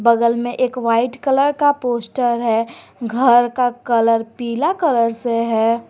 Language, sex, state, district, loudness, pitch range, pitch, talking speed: Hindi, female, Jharkhand, Garhwa, -17 LUFS, 230-250 Hz, 240 Hz, 155 wpm